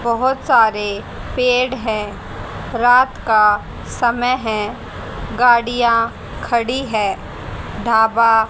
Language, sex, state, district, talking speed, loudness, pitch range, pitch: Hindi, female, Haryana, Rohtak, 85 wpm, -16 LUFS, 220-245 Hz, 230 Hz